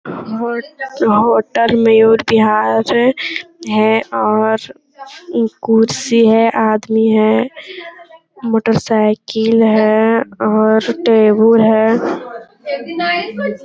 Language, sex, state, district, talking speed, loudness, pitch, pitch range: Hindi, female, Bihar, Jamui, 70 wpm, -13 LUFS, 225 Hz, 220-260 Hz